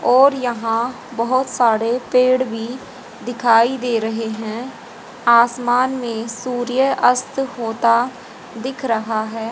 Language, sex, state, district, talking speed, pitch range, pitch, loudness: Hindi, female, Haryana, Jhajjar, 115 wpm, 230-255 Hz, 245 Hz, -18 LUFS